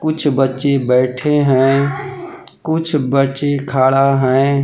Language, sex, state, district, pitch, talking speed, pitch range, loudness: Hindi, male, Jharkhand, Palamu, 140 Hz, 105 wpm, 135-150 Hz, -15 LUFS